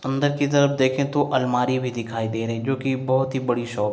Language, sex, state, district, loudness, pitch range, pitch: Hindi, male, Uttar Pradesh, Jalaun, -22 LUFS, 120-135 Hz, 130 Hz